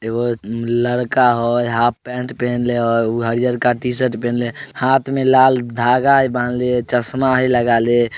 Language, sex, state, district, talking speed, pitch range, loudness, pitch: Maithili, male, Bihar, Samastipur, 170 wpm, 120-125 Hz, -16 LUFS, 120 Hz